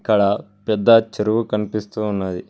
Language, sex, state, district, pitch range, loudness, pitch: Telugu, male, Telangana, Mahabubabad, 100-110 Hz, -19 LUFS, 105 Hz